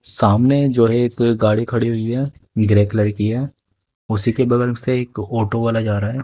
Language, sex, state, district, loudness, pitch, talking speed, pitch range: Hindi, male, Haryana, Jhajjar, -18 LUFS, 115 Hz, 210 wpm, 105-120 Hz